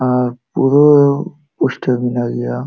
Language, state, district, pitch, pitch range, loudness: Santali, Jharkhand, Sahebganj, 125 Hz, 125-145 Hz, -14 LUFS